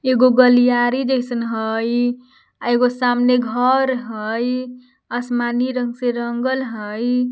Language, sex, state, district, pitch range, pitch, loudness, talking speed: Magahi, female, Jharkhand, Palamu, 240-250 Hz, 245 Hz, -18 LUFS, 105 wpm